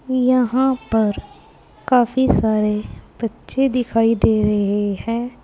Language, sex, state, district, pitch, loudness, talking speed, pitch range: Hindi, female, Uttar Pradesh, Saharanpur, 230 Hz, -18 LUFS, 100 wpm, 215-255 Hz